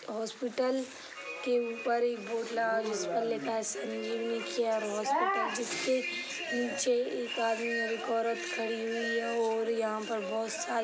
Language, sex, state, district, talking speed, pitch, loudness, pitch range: Hindi, female, Bihar, East Champaran, 160 wpm, 230 Hz, -32 LUFS, 225-240 Hz